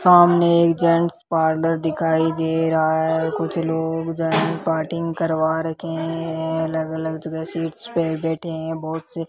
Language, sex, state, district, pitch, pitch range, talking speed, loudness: Hindi, male, Rajasthan, Bikaner, 160 Hz, 160-165 Hz, 170 wpm, -21 LUFS